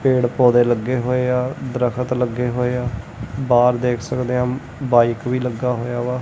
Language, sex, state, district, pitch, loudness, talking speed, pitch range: Punjabi, male, Punjab, Kapurthala, 125 Hz, -19 LUFS, 175 wpm, 120-125 Hz